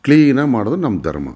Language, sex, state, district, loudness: Kannada, male, Karnataka, Mysore, -15 LUFS